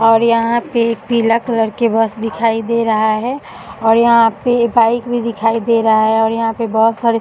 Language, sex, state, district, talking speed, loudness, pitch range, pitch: Hindi, female, Bihar, Saharsa, 235 wpm, -14 LUFS, 225-235 Hz, 230 Hz